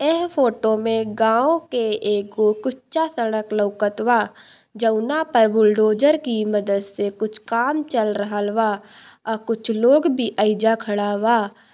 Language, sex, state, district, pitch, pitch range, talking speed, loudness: Bhojpuri, female, Bihar, Gopalganj, 225 Hz, 210-240 Hz, 145 wpm, -20 LUFS